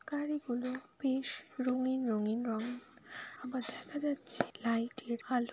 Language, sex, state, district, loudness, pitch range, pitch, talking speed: Bengali, female, West Bengal, Kolkata, -36 LUFS, 240-260 Hz, 255 Hz, 120 wpm